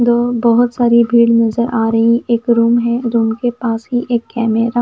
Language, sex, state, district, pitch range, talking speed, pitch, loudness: Hindi, female, Himachal Pradesh, Shimla, 230-240 Hz, 210 wpm, 235 Hz, -14 LUFS